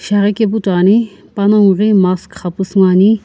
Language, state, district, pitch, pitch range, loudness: Sumi, Nagaland, Kohima, 200 Hz, 190-210 Hz, -12 LUFS